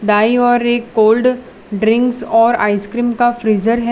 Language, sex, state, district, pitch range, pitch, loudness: Hindi, female, Gujarat, Valsad, 215-240 Hz, 230 Hz, -14 LUFS